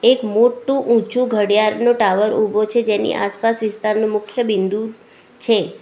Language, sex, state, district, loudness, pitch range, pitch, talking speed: Gujarati, female, Gujarat, Valsad, -17 LUFS, 210-235 Hz, 220 Hz, 135 wpm